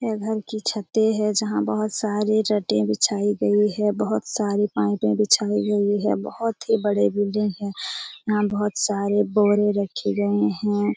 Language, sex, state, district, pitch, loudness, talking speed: Hindi, female, Bihar, Jamui, 205 Hz, -22 LUFS, 165 wpm